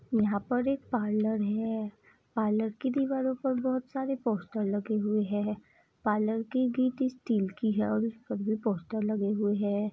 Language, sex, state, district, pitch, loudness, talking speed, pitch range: Hindi, female, Bihar, Saran, 220 Hz, -30 LUFS, 170 wpm, 210-250 Hz